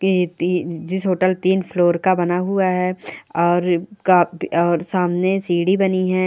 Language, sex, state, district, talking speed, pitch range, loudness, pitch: Hindi, female, Uttarakhand, Uttarkashi, 160 wpm, 175-185 Hz, -19 LUFS, 180 Hz